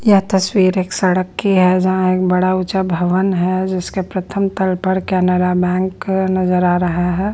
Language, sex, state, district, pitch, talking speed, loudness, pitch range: Hindi, female, Bihar, Patna, 185 Hz, 180 wpm, -16 LUFS, 180-190 Hz